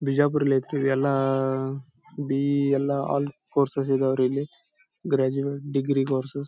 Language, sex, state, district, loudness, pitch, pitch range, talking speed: Kannada, male, Karnataka, Bijapur, -25 LUFS, 140 Hz, 135-140 Hz, 120 wpm